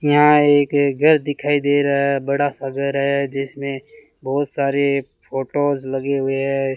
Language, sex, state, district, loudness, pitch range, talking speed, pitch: Hindi, male, Rajasthan, Bikaner, -19 LUFS, 135-145 Hz, 160 wpm, 140 Hz